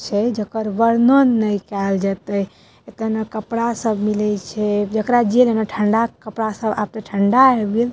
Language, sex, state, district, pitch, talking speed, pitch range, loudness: Maithili, female, Bihar, Madhepura, 220 Hz, 180 wpm, 210-230 Hz, -18 LUFS